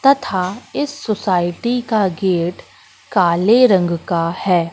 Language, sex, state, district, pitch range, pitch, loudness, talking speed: Hindi, female, Madhya Pradesh, Katni, 175-235 Hz, 190 Hz, -17 LUFS, 115 wpm